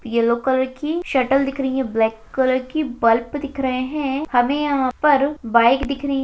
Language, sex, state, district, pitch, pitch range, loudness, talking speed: Hindi, female, Rajasthan, Churu, 265 Hz, 245-280 Hz, -19 LUFS, 200 wpm